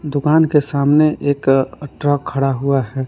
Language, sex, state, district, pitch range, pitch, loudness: Hindi, male, Jharkhand, Palamu, 135-150 Hz, 145 Hz, -16 LUFS